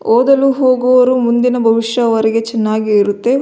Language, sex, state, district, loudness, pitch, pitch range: Kannada, female, Karnataka, Belgaum, -12 LUFS, 235 Hz, 225-255 Hz